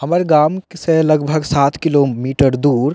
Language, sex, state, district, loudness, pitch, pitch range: Maithili, male, Bihar, Purnia, -15 LUFS, 150 Hz, 140-160 Hz